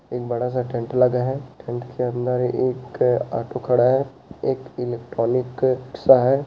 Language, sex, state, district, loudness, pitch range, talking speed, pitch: Hindi, male, Uttarakhand, Uttarkashi, -22 LUFS, 120-130 Hz, 160 wpm, 125 Hz